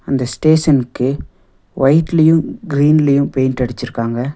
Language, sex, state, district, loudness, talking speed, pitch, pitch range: Tamil, male, Tamil Nadu, Nilgiris, -15 LUFS, 80 wpm, 135 Hz, 125-150 Hz